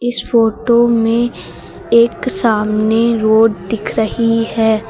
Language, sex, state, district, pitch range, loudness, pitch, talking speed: Hindi, female, Uttar Pradesh, Lucknow, 220-235 Hz, -14 LUFS, 225 Hz, 110 wpm